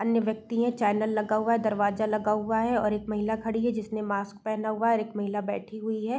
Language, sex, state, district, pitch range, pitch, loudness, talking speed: Hindi, female, Uttar Pradesh, Varanasi, 210-225 Hz, 215 Hz, -28 LUFS, 250 wpm